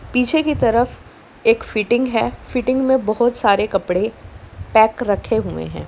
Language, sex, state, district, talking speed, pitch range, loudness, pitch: Hindi, female, Uttar Pradesh, Lalitpur, 155 wpm, 195-250 Hz, -18 LUFS, 225 Hz